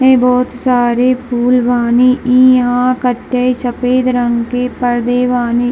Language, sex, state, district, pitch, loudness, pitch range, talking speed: Hindi, female, Bihar, Darbhanga, 250 Hz, -12 LUFS, 245-250 Hz, 135 wpm